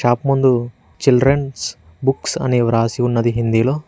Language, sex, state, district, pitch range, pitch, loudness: Telugu, male, Telangana, Mahabubabad, 115-135 Hz, 120 Hz, -17 LUFS